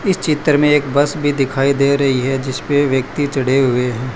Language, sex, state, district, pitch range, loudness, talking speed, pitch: Hindi, male, Gujarat, Valsad, 135-145 Hz, -16 LUFS, 215 wpm, 140 Hz